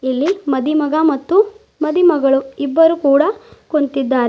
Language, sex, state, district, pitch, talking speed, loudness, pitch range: Kannada, female, Karnataka, Bidar, 300 Hz, 100 wpm, -15 LUFS, 275-345 Hz